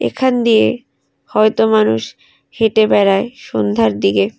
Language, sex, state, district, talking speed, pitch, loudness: Bengali, female, West Bengal, Alipurduar, 110 wpm, 200 Hz, -14 LUFS